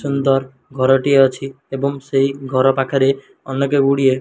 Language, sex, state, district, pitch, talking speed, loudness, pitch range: Odia, male, Odisha, Malkangiri, 135 Hz, 130 wpm, -17 LUFS, 135-140 Hz